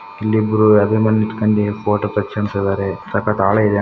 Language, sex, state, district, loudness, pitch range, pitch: Kannada, female, Karnataka, Chamarajanagar, -17 LUFS, 100-110 Hz, 105 Hz